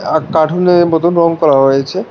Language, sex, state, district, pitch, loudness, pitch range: Bengali, male, Tripura, West Tripura, 165 Hz, -11 LUFS, 155-175 Hz